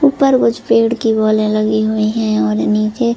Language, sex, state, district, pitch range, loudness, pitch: Hindi, female, Chhattisgarh, Bilaspur, 215-235 Hz, -14 LUFS, 220 Hz